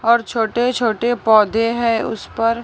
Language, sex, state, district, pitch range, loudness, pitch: Hindi, male, Maharashtra, Mumbai Suburban, 225-235 Hz, -17 LUFS, 230 Hz